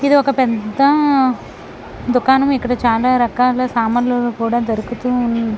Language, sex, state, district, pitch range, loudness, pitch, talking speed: Telugu, female, Andhra Pradesh, Krishna, 235-260 Hz, -16 LUFS, 250 Hz, 110 wpm